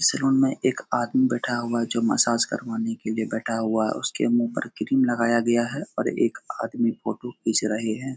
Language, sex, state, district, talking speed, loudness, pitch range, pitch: Hindi, male, Uttar Pradesh, Etah, 220 wpm, -24 LUFS, 115-130 Hz, 120 Hz